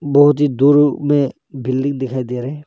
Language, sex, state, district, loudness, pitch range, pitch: Hindi, male, Arunachal Pradesh, Longding, -16 LUFS, 130-145 Hz, 140 Hz